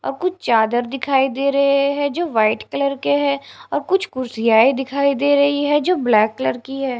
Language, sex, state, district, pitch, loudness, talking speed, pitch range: Hindi, female, Punjab, Fazilka, 275 Hz, -18 LUFS, 215 wpm, 245-285 Hz